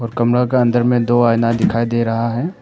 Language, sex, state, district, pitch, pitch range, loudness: Hindi, male, Arunachal Pradesh, Papum Pare, 120 Hz, 115-120 Hz, -16 LUFS